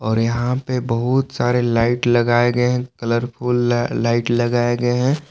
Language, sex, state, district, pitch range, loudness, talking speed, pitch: Hindi, male, Jharkhand, Palamu, 120-125 Hz, -18 LUFS, 160 wpm, 120 Hz